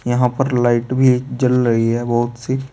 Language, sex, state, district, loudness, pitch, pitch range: Hindi, male, Uttar Pradesh, Saharanpur, -17 LUFS, 125 Hz, 120-130 Hz